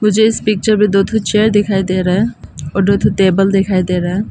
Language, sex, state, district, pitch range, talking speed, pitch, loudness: Hindi, female, Arunachal Pradesh, Papum Pare, 185-215 Hz, 235 wpm, 195 Hz, -13 LUFS